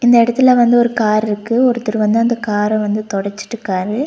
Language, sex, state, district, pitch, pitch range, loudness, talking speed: Tamil, female, Tamil Nadu, Nilgiris, 220 Hz, 210-240 Hz, -15 LUFS, 175 wpm